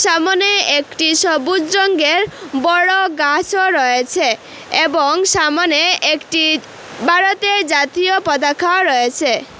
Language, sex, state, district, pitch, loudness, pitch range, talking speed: Bengali, female, Assam, Hailakandi, 345 Hz, -14 LUFS, 305-375 Hz, 90 wpm